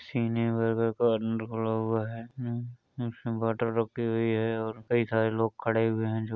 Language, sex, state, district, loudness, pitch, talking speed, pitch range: Hindi, male, Uttar Pradesh, Varanasi, -29 LUFS, 115 Hz, 180 wpm, 110-115 Hz